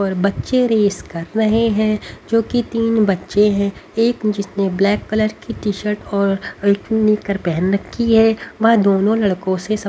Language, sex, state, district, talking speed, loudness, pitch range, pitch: Hindi, female, Haryana, Rohtak, 170 wpm, -17 LUFS, 200-225 Hz, 210 Hz